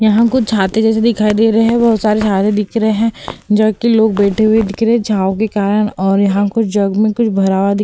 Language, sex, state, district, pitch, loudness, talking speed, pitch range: Hindi, female, Uttar Pradesh, Hamirpur, 215 Hz, -13 LUFS, 265 wpm, 200-225 Hz